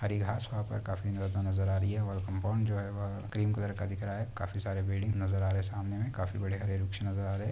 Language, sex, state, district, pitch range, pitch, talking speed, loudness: Hindi, male, Maharashtra, Dhule, 95-105 Hz, 100 Hz, 285 wpm, -34 LUFS